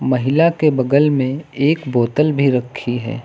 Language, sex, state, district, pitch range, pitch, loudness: Hindi, female, Uttar Pradesh, Lucknow, 125-150 Hz, 135 Hz, -16 LUFS